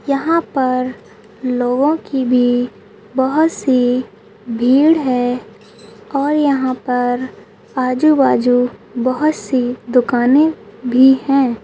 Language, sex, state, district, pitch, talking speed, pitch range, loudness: Hindi, female, Rajasthan, Churu, 250 Hz, 95 wpm, 240-275 Hz, -15 LUFS